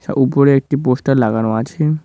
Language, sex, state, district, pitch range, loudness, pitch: Bengali, male, West Bengal, Cooch Behar, 125-140 Hz, -15 LUFS, 135 Hz